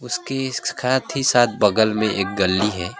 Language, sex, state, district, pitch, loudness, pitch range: Hindi, male, West Bengal, Alipurduar, 115 Hz, -20 LUFS, 105-130 Hz